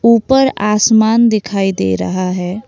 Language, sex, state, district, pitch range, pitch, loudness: Hindi, female, Assam, Kamrup Metropolitan, 185-230 Hz, 210 Hz, -13 LUFS